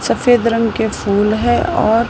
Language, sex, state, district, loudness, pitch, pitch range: Hindi, female, Maharashtra, Mumbai Suburban, -15 LUFS, 225 Hz, 215-235 Hz